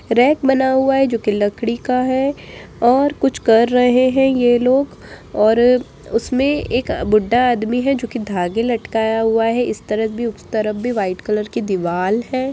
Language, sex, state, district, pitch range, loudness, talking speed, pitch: Hindi, female, Bihar, Jamui, 220-260 Hz, -17 LUFS, 185 wpm, 240 Hz